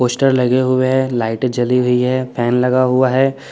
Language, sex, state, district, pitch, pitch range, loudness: Hindi, male, Chandigarh, Chandigarh, 125 Hz, 125-130 Hz, -15 LUFS